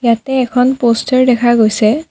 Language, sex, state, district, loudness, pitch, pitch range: Assamese, female, Assam, Kamrup Metropolitan, -12 LUFS, 245 Hz, 230-255 Hz